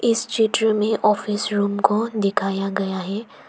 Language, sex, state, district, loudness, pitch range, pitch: Hindi, female, Arunachal Pradesh, Papum Pare, -21 LUFS, 200-220 Hz, 210 Hz